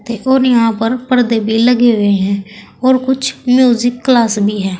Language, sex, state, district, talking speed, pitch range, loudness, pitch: Hindi, female, Uttar Pradesh, Saharanpur, 175 wpm, 210-255 Hz, -13 LUFS, 235 Hz